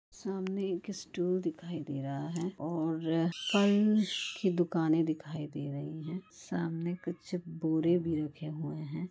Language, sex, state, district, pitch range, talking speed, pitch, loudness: Hindi, female, Goa, North and South Goa, 155-180 Hz, 160 wpm, 165 Hz, -33 LUFS